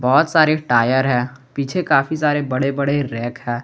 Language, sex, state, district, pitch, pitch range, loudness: Hindi, male, Jharkhand, Garhwa, 135 Hz, 125-145 Hz, -18 LUFS